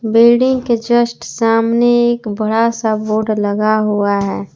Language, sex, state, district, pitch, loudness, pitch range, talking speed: Hindi, female, Jharkhand, Palamu, 225 Hz, -14 LUFS, 215-235 Hz, 145 wpm